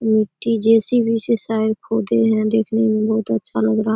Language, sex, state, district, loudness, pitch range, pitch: Hindi, female, Bihar, Samastipur, -18 LUFS, 170-225 Hz, 220 Hz